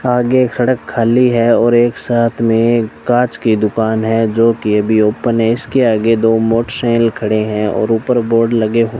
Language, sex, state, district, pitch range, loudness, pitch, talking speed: Hindi, male, Rajasthan, Bikaner, 110-120 Hz, -13 LUFS, 115 Hz, 205 wpm